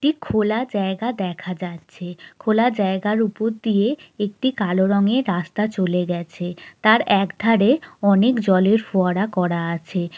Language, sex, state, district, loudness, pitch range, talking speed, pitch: Bengali, female, West Bengal, Jalpaiguri, -20 LUFS, 180-220 Hz, 130 wpm, 200 Hz